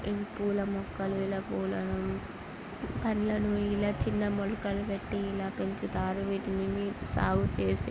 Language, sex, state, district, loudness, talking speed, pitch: Telugu, female, Andhra Pradesh, Guntur, -32 LUFS, 120 wpm, 195 Hz